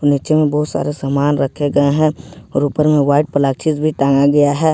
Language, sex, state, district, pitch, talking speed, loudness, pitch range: Hindi, male, Jharkhand, Ranchi, 145 Hz, 215 wpm, -15 LUFS, 140-150 Hz